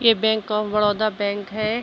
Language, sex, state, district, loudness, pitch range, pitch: Hindi, female, Uttar Pradesh, Budaun, -21 LUFS, 210-220 Hz, 215 Hz